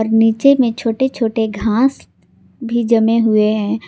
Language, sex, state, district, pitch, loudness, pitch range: Hindi, female, Jharkhand, Palamu, 225 Hz, -15 LUFS, 220-235 Hz